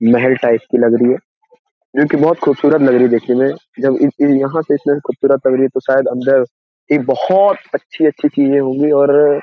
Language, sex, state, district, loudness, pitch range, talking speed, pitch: Hindi, male, Bihar, Jamui, -14 LUFS, 130-150 Hz, 230 wpm, 140 Hz